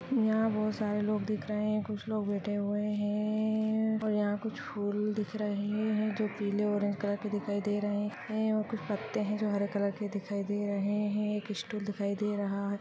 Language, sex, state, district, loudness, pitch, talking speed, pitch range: Hindi, female, Rajasthan, Churu, -32 LUFS, 210 Hz, 220 wpm, 205-215 Hz